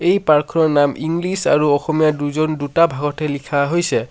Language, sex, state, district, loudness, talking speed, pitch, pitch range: Assamese, male, Assam, Sonitpur, -17 LUFS, 175 wpm, 155 Hz, 145-165 Hz